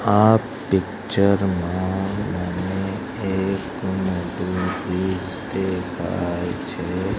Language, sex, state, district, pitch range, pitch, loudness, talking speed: Gujarati, male, Gujarat, Gandhinagar, 90-95 Hz, 95 Hz, -23 LUFS, 65 wpm